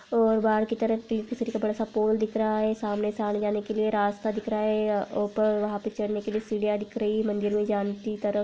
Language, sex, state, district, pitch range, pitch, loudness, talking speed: Hindi, female, Rajasthan, Nagaur, 210-220 Hz, 215 Hz, -27 LUFS, 250 wpm